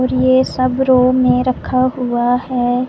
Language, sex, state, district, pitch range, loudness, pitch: Hindi, female, Punjab, Pathankot, 250-255 Hz, -15 LUFS, 255 Hz